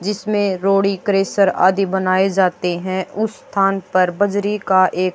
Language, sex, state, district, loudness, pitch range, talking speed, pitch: Hindi, female, Haryana, Charkhi Dadri, -17 LUFS, 185-200 Hz, 150 wpm, 195 Hz